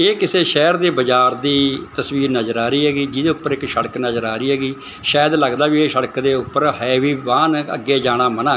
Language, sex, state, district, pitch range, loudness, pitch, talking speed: Punjabi, male, Punjab, Fazilka, 125-150 Hz, -17 LUFS, 140 Hz, 225 wpm